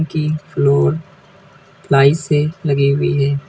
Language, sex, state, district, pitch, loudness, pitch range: Hindi, female, West Bengal, Alipurduar, 150 Hz, -16 LUFS, 140-160 Hz